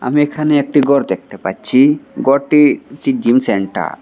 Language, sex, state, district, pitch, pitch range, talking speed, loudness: Bengali, male, Assam, Hailakandi, 140 Hz, 130-145 Hz, 165 wpm, -14 LUFS